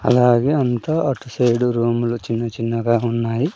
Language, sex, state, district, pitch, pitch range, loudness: Telugu, male, Andhra Pradesh, Sri Satya Sai, 120 Hz, 115-125 Hz, -19 LUFS